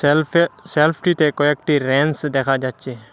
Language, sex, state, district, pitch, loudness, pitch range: Bengali, male, Assam, Hailakandi, 150 Hz, -18 LUFS, 135-155 Hz